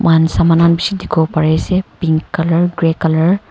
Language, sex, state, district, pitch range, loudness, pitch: Nagamese, female, Nagaland, Kohima, 160-175 Hz, -14 LUFS, 165 Hz